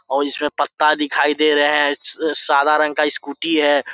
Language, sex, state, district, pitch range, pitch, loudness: Hindi, male, Jharkhand, Sahebganj, 145-150 Hz, 150 Hz, -17 LUFS